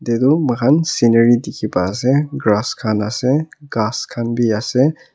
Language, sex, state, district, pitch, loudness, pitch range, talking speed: Nagamese, male, Nagaland, Kohima, 120 Hz, -17 LUFS, 110-140 Hz, 165 wpm